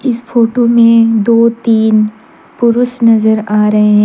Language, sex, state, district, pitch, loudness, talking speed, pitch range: Hindi, female, Jharkhand, Deoghar, 230 Hz, -10 LUFS, 135 wpm, 215-235 Hz